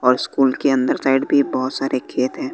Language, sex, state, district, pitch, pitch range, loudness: Hindi, male, Bihar, West Champaran, 135 Hz, 130-135 Hz, -19 LUFS